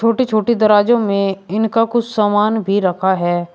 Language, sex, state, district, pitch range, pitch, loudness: Hindi, male, Uttar Pradesh, Shamli, 195-230 Hz, 210 Hz, -15 LUFS